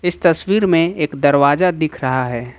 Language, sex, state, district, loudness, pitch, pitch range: Hindi, male, Jharkhand, Ranchi, -16 LUFS, 155 Hz, 140-175 Hz